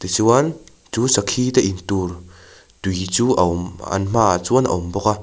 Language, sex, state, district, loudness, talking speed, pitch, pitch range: Mizo, male, Mizoram, Aizawl, -19 LUFS, 195 wpm, 100 Hz, 90-120 Hz